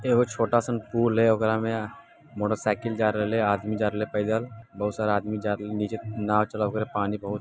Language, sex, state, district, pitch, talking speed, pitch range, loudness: Maithili, male, Bihar, Lakhisarai, 110 Hz, 195 wpm, 105-115 Hz, -26 LUFS